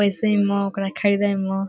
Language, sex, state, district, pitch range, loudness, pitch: Maithili, female, Bihar, Saharsa, 195-205 Hz, -21 LUFS, 200 Hz